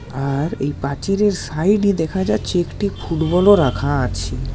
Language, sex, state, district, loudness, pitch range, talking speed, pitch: Bengali, male, West Bengal, Paschim Medinipur, -18 LUFS, 135-195 Hz, 160 wpm, 160 Hz